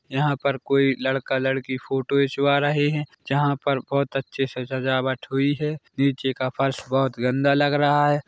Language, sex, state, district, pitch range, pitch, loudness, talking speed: Hindi, male, Chhattisgarh, Bilaspur, 130-145 Hz, 135 Hz, -23 LUFS, 175 wpm